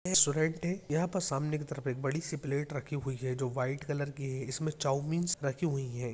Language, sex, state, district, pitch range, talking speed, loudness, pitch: Hindi, male, Uttarakhand, Tehri Garhwal, 135-160 Hz, 205 wpm, -33 LUFS, 145 Hz